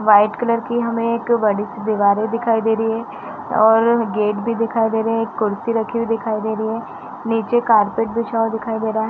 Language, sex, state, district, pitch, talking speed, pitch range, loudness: Hindi, female, Uttar Pradesh, Varanasi, 225 Hz, 225 wpm, 220-230 Hz, -18 LUFS